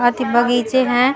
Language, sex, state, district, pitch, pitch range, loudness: Hindi, female, Bihar, Vaishali, 245 Hz, 240-255 Hz, -16 LUFS